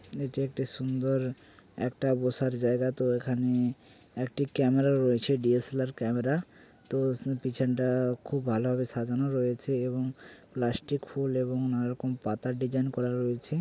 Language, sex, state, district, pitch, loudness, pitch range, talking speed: Bengali, male, West Bengal, Paschim Medinipur, 125 Hz, -30 LUFS, 125-135 Hz, 150 wpm